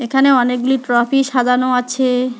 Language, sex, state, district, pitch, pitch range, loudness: Bengali, female, West Bengal, Alipurduar, 250 Hz, 250-265 Hz, -15 LUFS